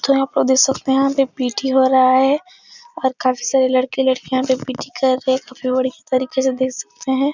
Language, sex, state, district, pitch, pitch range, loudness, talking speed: Hindi, female, Uttar Pradesh, Etah, 260 Hz, 255-270 Hz, -18 LUFS, 210 wpm